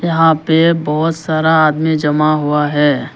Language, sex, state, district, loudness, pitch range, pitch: Hindi, male, Arunachal Pradesh, Lower Dibang Valley, -13 LUFS, 150-160 Hz, 155 Hz